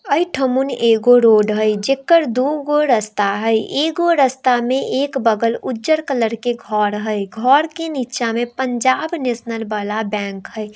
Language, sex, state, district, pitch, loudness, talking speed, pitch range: Hindi, female, Bihar, Darbhanga, 240 Hz, -17 LUFS, 155 wpm, 220-270 Hz